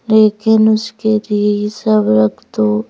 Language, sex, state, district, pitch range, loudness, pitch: Hindi, female, Madhya Pradesh, Bhopal, 205-220 Hz, -14 LUFS, 215 Hz